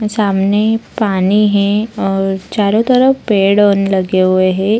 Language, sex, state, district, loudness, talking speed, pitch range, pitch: Hindi, female, Bihar, Samastipur, -13 LUFS, 125 wpm, 195-215 Hz, 200 Hz